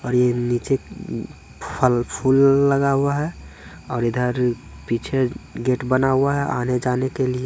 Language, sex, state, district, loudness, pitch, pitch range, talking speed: Hindi, male, Bihar, Jamui, -21 LUFS, 125 Hz, 120-135 Hz, 145 wpm